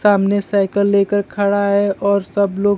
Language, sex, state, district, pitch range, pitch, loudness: Hindi, male, Bihar, Kaimur, 200-205 Hz, 200 Hz, -16 LUFS